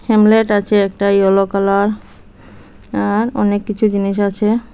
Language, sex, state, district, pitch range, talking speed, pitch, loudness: Bengali, female, Assam, Hailakandi, 195-210 Hz, 125 wpm, 200 Hz, -15 LUFS